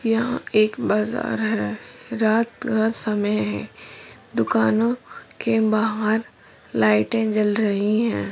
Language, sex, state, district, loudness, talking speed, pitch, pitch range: Hindi, female, Chhattisgarh, Bilaspur, -22 LUFS, 110 wpm, 215 Hz, 205-225 Hz